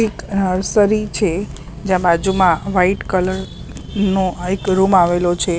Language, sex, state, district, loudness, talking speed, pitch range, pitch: Gujarati, female, Maharashtra, Mumbai Suburban, -17 LUFS, 130 wpm, 180-195 Hz, 190 Hz